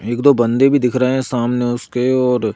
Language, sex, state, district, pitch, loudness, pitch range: Hindi, male, Madhya Pradesh, Bhopal, 125 Hz, -16 LUFS, 120-130 Hz